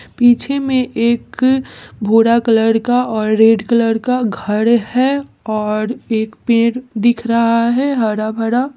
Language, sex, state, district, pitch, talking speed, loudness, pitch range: Hindi, female, Bihar, Gaya, 230 Hz, 130 wpm, -15 LUFS, 225-250 Hz